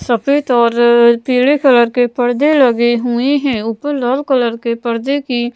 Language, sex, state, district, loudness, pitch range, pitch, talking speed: Hindi, female, Madhya Pradesh, Bhopal, -13 LUFS, 235-275 Hz, 245 Hz, 160 wpm